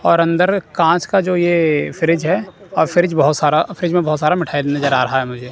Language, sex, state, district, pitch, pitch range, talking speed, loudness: Hindi, male, Punjab, Kapurthala, 165 Hz, 150-180 Hz, 240 wpm, -16 LUFS